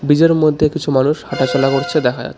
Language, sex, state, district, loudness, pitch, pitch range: Bengali, male, West Bengal, Darjeeling, -15 LUFS, 145 Hz, 135-155 Hz